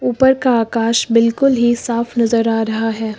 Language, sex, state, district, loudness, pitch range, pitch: Hindi, female, Uttar Pradesh, Lucknow, -15 LUFS, 225-240 Hz, 230 Hz